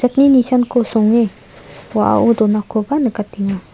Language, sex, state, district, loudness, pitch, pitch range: Garo, female, Meghalaya, South Garo Hills, -15 LUFS, 230 Hz, 210-250 Hz